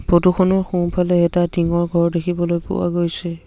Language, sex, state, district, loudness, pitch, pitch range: Assamese, male, Assam, Sonitpur, -18 LUFS, 175 Hz, 170-180 Hz